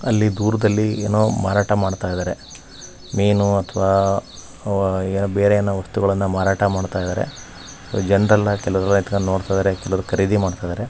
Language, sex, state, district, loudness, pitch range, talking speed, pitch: Kannada, male, Karnataka, Raichur, -19 LUFS, 95-105 Hz, 125 wpm, 100 Hz